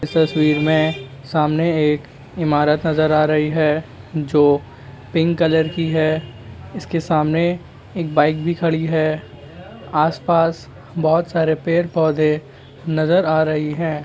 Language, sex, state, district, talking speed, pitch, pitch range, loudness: Hindi, male, Bihar, Saran, 125 wpm, 155 Hz, 150-165 Hz, -18 LUFS